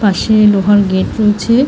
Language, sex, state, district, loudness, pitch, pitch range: Bengali, female, West Bengal, North 24 Parganas, -11 LUFS, 205 Hz, 200-215 Hz